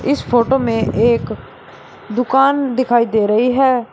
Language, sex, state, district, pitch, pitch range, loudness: Hindi, male, Uttar Pradesh, Shamli, 245 Hz, 230-265 Hz, -15 LUFS